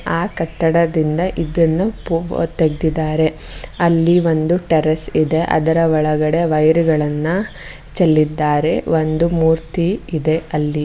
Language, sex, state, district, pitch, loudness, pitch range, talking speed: Kannada, female, Karnataka, Mysore, 160 Hz, -17 LUFS, 155-170 Hz, 100 wpm